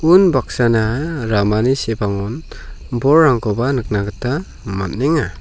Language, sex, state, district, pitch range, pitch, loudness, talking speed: Garo, male, Meghalaya, South Garo Hills, 105-140 Hz, 120 Hz, -17 LUFS, 80 wpm